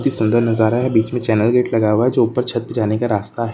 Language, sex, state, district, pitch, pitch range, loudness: Hindi, male, Chhattisgarh, Raigarh, 115 Hz, 110-120 Hz, -17 LUFS